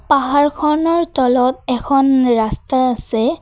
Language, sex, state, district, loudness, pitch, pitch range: Assamese, female, Assam, Kamrup Metropolitan, -15 LUFS, 270 Hz, 250-290 Hz